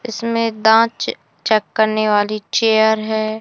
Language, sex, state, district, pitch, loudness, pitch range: Hindi, male, Madhya Pradesh, Katni, 220 Hz, -16 LUFS, 215-225 Hz